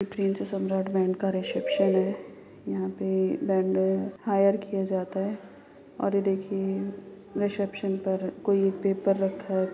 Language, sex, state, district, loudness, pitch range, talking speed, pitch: Hindi, female, Bihar, Madhepura, -28 LUFS, 190-200 Hz, 140 wpm, 195 Hz